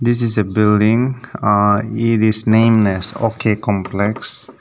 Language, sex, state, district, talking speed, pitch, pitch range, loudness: English, male, Nagaland, Dimapur, 145 wpm, 110 Hz, 105-115 Hz, -15 LUFS